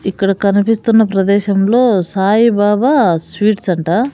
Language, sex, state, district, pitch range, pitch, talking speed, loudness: Telugu, female, Andhra Pradesh, Sri Satya Sai, 195-225 Hz, 205 Hz, 85 wpm, -13 LUFS